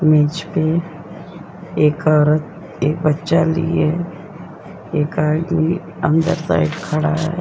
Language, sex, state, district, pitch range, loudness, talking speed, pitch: Hindi, female, Uttar Pradesh, Jyotiba Phule Nagar, 155-170 Hz, -18 LUFS, 105 wpm, 160 Hz